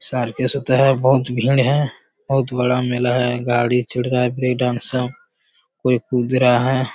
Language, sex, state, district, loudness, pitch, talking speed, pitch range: Hindi, male, Bihar, Jamui, -18 LUFS, 125 Hz, 165 wpm, 125-130 Hz